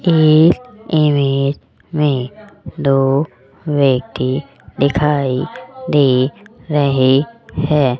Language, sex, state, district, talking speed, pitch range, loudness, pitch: Hindi, female, Rajasthan, Jaipur, 65 wpm, 130-150 Hz, -15 LUFS, 140 Hz